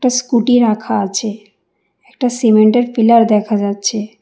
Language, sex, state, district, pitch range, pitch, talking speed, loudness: Bengali, female, Karnataka, Bangalore, 210-245 Hz, 220 Hz, 115 wpm, -13 LUFS